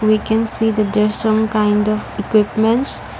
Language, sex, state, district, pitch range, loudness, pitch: English, female, Assam, Kamrup Metropolitan, 210-220 Hz, -15 LUFS, 215 Hz